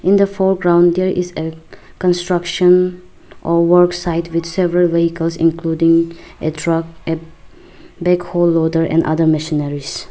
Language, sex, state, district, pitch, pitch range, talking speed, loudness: English, female, Arunachal Pradesh, Lower Dibang Valley, 170 Hz, 165-180 Hz, 130 wpm, -16 LUFS